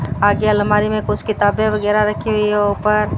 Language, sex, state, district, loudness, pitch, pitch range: Hindi, female, Rajasthan, Bikaner, -16 LUFS, 210 Hz, 205-215 Hz